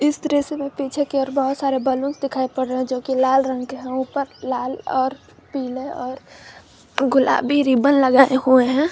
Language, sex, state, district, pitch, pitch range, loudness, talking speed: Hindi, female, Jharkhand, Garhwa, 265 Hz, 260-280 Hz, -20 LUFS, 195 wpm